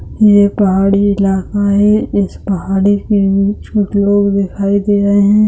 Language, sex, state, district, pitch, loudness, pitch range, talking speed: Hindi, female, Bihar, Gaya, 200 Hz, -12 LUFS, 195-205 Hz, 140 wpm